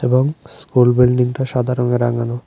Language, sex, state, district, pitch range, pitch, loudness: Bengali, male, Tripura, West Tripura, 120-125 Hz, 125 Hz, -16 LUFS